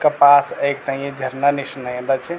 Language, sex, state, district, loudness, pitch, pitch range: Garhwali, male, Uttarakhand, Tehri Garhwal, -18 LUFS, 140 Hz, 135-145 Hz